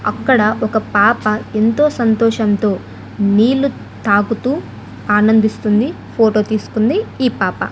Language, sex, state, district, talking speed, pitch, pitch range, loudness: Telugu, female, Andhra Pradesh, Annamaya, 95 wpm, 220 Hz, 210-235 Hz, -15 LUFS